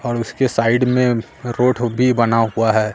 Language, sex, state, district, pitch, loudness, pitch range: Hindi, male, Bihar, Katihar, 120 Hz, -17 LUFS, 115-125 Hz